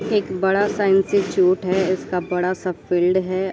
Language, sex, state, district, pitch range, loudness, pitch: Hindi, female, Bihar, Sitamarhi, 180-195 Hz, -20 LUFS, 185 Hz